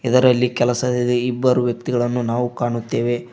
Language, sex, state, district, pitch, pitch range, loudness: Kannada, male, Karnataka, Koppal, 120 Hz, 120-125 Hz, -19 LUFS